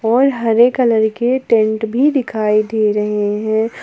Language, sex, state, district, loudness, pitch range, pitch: Hindi, female, Jharkhand, Palamu, -15 LUFS, 215-240 Hz, 225 Hz